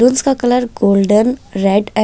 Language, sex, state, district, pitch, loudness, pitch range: Hindi, female, Delhi, New Delhi, 230 Hz, -14 LUFS, 205-250 Hz